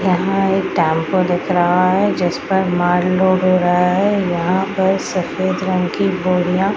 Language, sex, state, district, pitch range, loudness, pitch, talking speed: Hindi, female, Bihar, Madhepura, 180-190 Hz, -16 LUFS, 185 Hz, 170 wpm